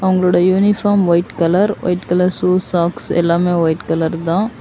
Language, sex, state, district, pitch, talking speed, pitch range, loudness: Tamil, female, Tamil Nadu, Kanyakumari, 180 Hz, 155 wpm, 170-190 Hz, -15 LUFS